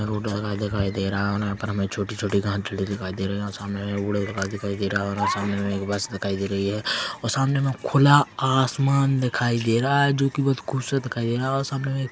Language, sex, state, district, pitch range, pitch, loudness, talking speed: Hindi, male, Chhattisgarh, Korba, 100-135 Hz, 105 Hz, -24 LUFS, 265 wpm